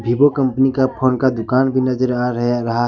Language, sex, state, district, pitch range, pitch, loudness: Hindi, male, Jharkhand, Ranchi, 120-130 Hz, 130 Hz, -17 LUFS